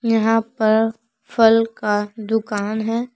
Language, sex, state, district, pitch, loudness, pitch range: Hindi, female, Jharkhand, Palamu, 225 Hz, -19 LUFS, 220-225 Hz